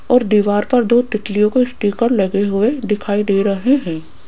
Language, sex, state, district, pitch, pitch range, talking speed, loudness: Hindi, female, Rajasthan, Jaipur, 210 Hz, 200-240 Hz, 180 wpm, -16 LUFS